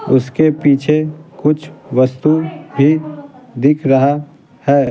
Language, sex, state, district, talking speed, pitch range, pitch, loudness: Hindi, male, Bihar, Patna, 85 wpm, 140-155 Hz, 150 Hz, -15 LUFS